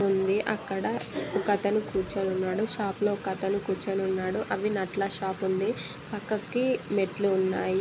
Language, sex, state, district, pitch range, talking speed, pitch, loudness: Telugu, female, Telangana, Nalgonda, 190-205 Hz, 140 wpm, 195 Hz, -29 LUFS